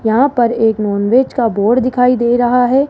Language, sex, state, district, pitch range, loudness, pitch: Hindi, female, Rajasthan, Jaipur, 225-250 Hz, -13 LUFS, 240 Hz